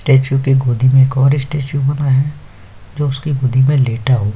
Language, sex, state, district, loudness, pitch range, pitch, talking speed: Hindi, male, Chhattisgarh, Korba, -14 LUFS, 130-140 Hz, 135 Hz, 95 wpm